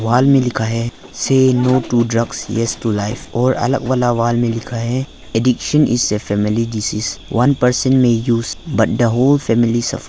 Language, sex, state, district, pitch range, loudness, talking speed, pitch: Hindi, male, Arunachal Pradesh, Lower Dibang Valley, 115-130 Hz, -16 LUFS, 190 wpm, 120 Hz